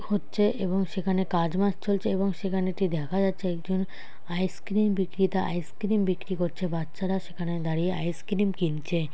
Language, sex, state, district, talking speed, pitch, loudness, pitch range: Bengali, female, West Bengal, North 24 Parganas, 150 wpm, 190 Hz, -28 LUFS, 175-195 Hz